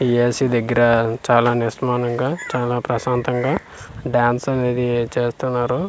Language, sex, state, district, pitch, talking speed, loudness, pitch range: Telugu, male, Andhra Pradesh, Manyam, 120 Hz, 90 wpm, -19 LUFS, 120-125 Hz